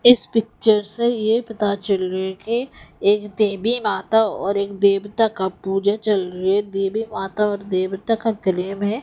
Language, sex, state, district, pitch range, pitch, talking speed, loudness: Hindi, female, Odisha, Khordha, 195-225 Hz, 205 Hz, 175 wpm, -20 LUFS